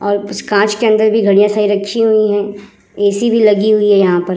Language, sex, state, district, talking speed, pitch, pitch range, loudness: Hindi, female, Bihar, Vaishali, 245 wpm, 205 Hz, 200-215 Hz, -12 LUFS